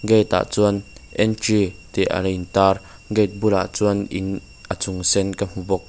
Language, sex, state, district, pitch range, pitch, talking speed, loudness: Mizo, male, Mizoram, Aizawl, 95-105 Hz, 100 Hz, 185 wpm, -21 LUFS